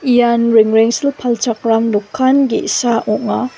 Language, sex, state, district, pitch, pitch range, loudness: Garo, female, Meghalaya, West Garo Hills, 235 Hz, 225-255 Hz, -14 LUFS